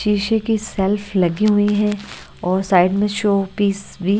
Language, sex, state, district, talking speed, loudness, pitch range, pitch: Hindi, female, Odisha, Nuapada, 155 wpm, -18 LUFS, 195-210 Hz, 205 Hz